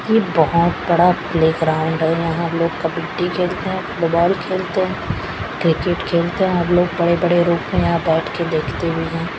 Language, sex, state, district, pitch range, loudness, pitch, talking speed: Hindi, female, Chhattisgarh, Raipur, 165-175 Hz, -18 LUFS, 170 Hz, 180 wpm